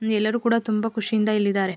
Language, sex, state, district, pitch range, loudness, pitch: Kannada, female, Karnataka, Mysore, 210-225 Hz, -22 LUFS, 215 Hz